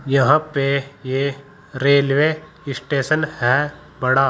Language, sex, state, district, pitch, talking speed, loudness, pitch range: Hindi, male, Uttar Pradesh, Saharanpur, 140 Hz, 95 wpm, -19 LUFS, 135-150 Hz